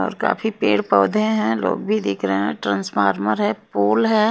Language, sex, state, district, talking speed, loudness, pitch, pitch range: Hindi, female, Haryana, Jhajjar, 195 wpm, -19 LUFS, 105 Hz, 100-135 Hz